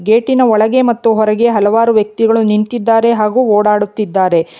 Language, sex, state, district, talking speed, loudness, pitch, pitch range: Kannada, female, Karnataka, Bangalore, 115 wpm, -12 LUFS, 220 Hz, 210-230 Hz